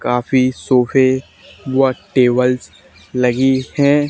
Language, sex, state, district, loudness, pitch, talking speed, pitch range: Hindi, male, Haryana, Charkhi Dadri, -16 LUFS, 130 Hz, 85 wpm, 125-135 Hz